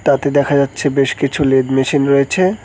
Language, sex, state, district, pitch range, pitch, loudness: Bengali, male, West Bengal, Cooch Behar, 135-145 Hz, 140 Hz, -14 LUFS